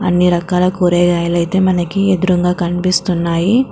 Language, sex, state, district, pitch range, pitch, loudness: Telugu, female, Telangana, Karimnagar, 175-185 Hz, 180 Hz, -14 LUFS